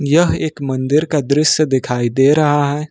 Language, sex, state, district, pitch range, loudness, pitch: Hindi, male, Jharkhand, Ranchi, 135-155 Hz, -15 LUFS, 145 Hz